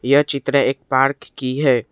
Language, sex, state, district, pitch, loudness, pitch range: Hindi, male, Assam, Kamrup Metropolitan, 135 Hz, -18 LUFS, 130-140 Hz